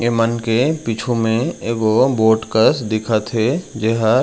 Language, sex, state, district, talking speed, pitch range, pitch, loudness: Chhattisgarhi, male, Chhattisgarh, Raigarh, 140 wpm, 110-120 Hz, 115 Hz, -17 LUFS